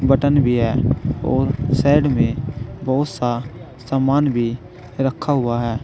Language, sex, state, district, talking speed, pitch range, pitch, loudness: Hindi, male, Uttar Pradesh, Saharanpur, 125 wpm, 120-135 Hz, 130 Hz, -19 LUFS